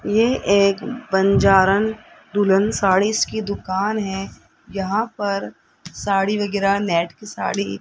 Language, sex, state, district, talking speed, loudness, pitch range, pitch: Hindi, male, Rajasthan, Jaipur, 115 wpm, -20 LUFS, 195-215 Hz, 200 Hz